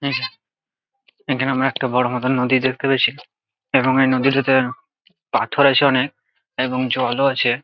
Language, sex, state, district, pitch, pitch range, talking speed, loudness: Bengali, male, West Bengal, Jalpaiguri, 130 Hz, 130-135 Hz, 135 wpm, -18 LUFS